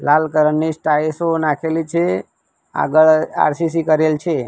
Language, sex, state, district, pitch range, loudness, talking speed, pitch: Gujarati, male, Gujarat, Gandhinagar, 155-165 Hz, -17 LUFS, 120 wpm, 155 Hz